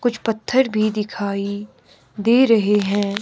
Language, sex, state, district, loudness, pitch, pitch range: Hindi, female, Himachal Pradesh, Shimla, -19 LUFS, 210 Hz, 205-230 Hz